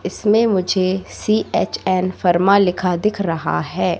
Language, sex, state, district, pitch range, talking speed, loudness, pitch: Hindi, female, Madhya Pradesh, Katni, 180-205 Hz, 120 wpm, -18 LUFS, 185 Hz